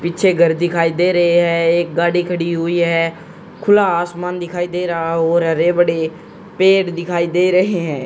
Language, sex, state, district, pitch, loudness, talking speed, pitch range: Hindi, male, Haryana, Jhajjar, 175 Hz, -16 LUFS, 200 wpm, 170-180 Hz